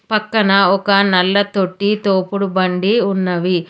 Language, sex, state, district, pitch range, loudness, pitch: Telugu, female, Telangana, Hyderabad, 185-200 Hz, -15 LUFS, 195 Hz